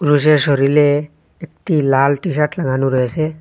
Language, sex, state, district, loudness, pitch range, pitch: Bengali, male, Assam, Hailakandi, -15 LUFS, 140-155 Hz, 150 Hz